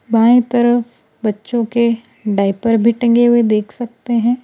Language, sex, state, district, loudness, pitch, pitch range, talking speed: Hindi, female, Gujarat, Valsad, -15 LUFS, 235 Hz, 225-240 Hz, 150 wpm